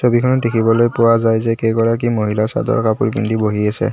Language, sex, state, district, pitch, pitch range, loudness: Assamese, male, Assam, Kamrup Metropolitan, 115 Hz, 110-115 Hz, -16 LUFS